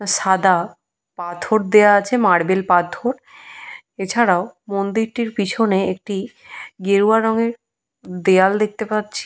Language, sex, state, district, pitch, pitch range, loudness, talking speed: Bengali, female, Jharkhand, Jamtara, 205 Hz, 190-225 Hz, -18 LUFS, 95 wpm